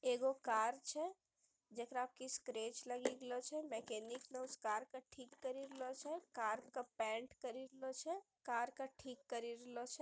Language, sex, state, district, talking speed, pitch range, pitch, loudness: Maithili, female, Bihar, Bhagalpur, 180 wpm, 240-265 Hz, 255 Hz, -46 LUFS